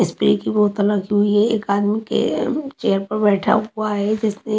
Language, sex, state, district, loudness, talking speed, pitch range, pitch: Hindi, female, Maharashtra, Mumbai Suburban, -19 LUFS, 210 wpm, 205-215 Hz, 210 Hz